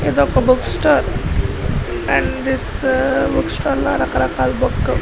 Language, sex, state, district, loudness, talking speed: Telugu, female, Andhra Pradesh, Guntur, -17 LUFS, 130 wpm